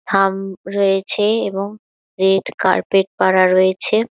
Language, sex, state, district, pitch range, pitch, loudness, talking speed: Bengali, female, West Bengal, Malda, 190-200 Hz, 195 Hz, -17 LUFS, 115 wpm